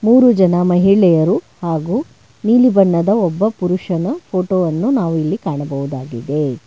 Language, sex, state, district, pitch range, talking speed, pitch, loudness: Kannada, female, Karnataka, Bangalore, 160-205 Hz, 110 wpm, 180 Hz, -15 LUFS